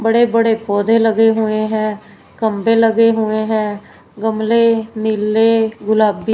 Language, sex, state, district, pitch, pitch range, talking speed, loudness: Hindi, female, Punjab, Fazilka, 220 Hz, 215-225 Hz, 125 wpm, -15 LUFS